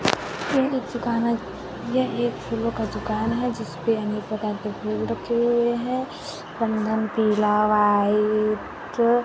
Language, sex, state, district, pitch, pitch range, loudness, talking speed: Hindi, female, Chhattisgarh, Raipur, 225 Hz, 215-235 Hz, -24 LUFS, 135 wpm